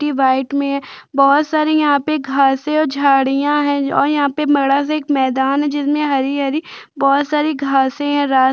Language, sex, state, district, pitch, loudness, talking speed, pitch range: Hindi, female, Chhattisgarh, Jashpur, 280 Hz, -16 LUFS, 190 wpm, 275-295 Hz